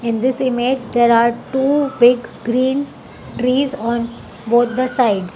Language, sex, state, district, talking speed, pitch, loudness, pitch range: English, female, Telangana, Hyderabad, 145 wpm, 245 Hz, -17 LUFS, 235-260 Hz